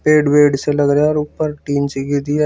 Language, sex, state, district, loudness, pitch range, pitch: Hindi, male, Uttar Pradesh, Shamli, -16 LUFS, 145-150 Hz, 145 Hz